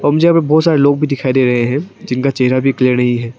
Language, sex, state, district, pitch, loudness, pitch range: Hindi, male, Arunachal Pradesh, Papum Pare, 135 Hz, -13 LUFS, 125-150 Hz